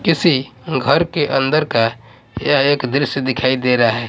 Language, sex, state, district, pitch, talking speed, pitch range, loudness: Hindi, male, Odisha, Malkangiri, 130 Hz, 175 wpm, 120-145 Hz, -16 LUFS